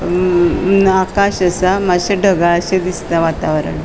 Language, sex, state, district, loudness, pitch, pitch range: Konkani, female, Goa, North and South Goa, -14 LUFS, 180 Hz, 170-190 Hz